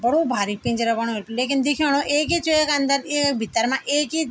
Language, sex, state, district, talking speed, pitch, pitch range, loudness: Garhwali, female, Uttarakhand, Tehri Garhwal, 235 wpm, 275 Hz, 235-295 Hz, -21 LUFS